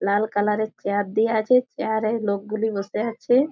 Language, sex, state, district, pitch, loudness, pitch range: Bengali, female, West Bengal, Jhargram, 215 Hz, -23 LUFS, 205-225 Hz